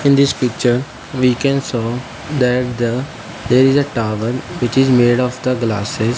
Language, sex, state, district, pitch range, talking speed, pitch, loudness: English, male, Punjab, Fazilka, 120-130 Hz, 175 wpm, 125 Hz, -16 LUFS